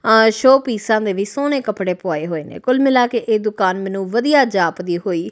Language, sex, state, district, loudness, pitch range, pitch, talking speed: Punjabi, female, Punjab, Kapurthala, -17 LUFS, 185-245 Hz, 215 Hz, 215 wpm